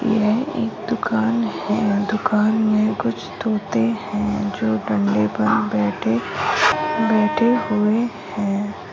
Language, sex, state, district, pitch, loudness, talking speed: Marathi, female, Maharashtra, Sindhudurg, 210 Hz, -20 LUFS, 110 wpm